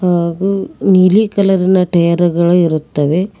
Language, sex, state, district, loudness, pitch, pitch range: Kannada, female, Karnataka, Koppal, -13 LUFS, 180 Hz, 170-190 Hz